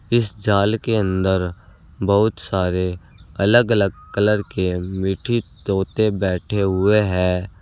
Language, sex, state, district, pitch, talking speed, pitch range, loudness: Hindi, male, Uttar Pradesh, Saharanpur, 100 Hz, 120 wpm, 90-105 Hz, -20 LUFS